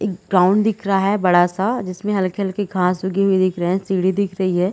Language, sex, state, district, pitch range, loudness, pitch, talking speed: Hindi, female, Chhattisgarh, Bilaspur, 185-200 Hz, -18 LUFS, 190 Hz, 240 wpm